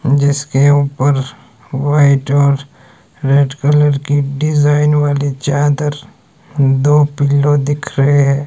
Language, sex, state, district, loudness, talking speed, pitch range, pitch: Hindi, male, Himachal Pradesh, Shimla, -13 LUFS, 105 wpm, 140-145 Hz, 145 Hz